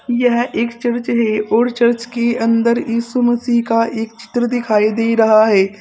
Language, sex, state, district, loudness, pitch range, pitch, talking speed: Hindi, female, Uttar Pradesh, Saharanpur, -15 LUFS, 225-240 Hz, 235 Hz, 175 wpm